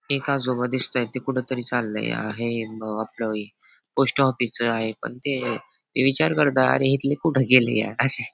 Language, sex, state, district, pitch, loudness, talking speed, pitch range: Marathi, male, Maharashtra, Pune, 125 Hz, -22 LUFS, 180 wpm, 115-135 Hz